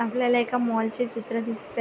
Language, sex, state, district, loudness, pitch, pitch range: Marathi, female, Maharashtra, Pune, -26 LUFS, 235 Hz, 230-245 Hz